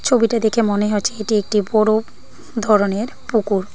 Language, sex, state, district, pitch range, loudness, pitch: Bengali, female, Tripura, Dhalai, 210-230 Hz, -18 LUFS, 215 Hz